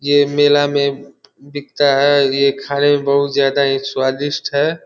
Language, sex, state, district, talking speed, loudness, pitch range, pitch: Hindi, male, Bihar, Vaishali, 160 wpm, -15 LUFS, 140-145 Hz, 140 Hz